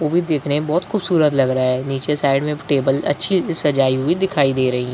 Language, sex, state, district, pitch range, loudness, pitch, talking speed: Hindi, male, Bihar, Begusarai, 135-165 Hz, -18 LUFS, 145 Hz, 230 wpm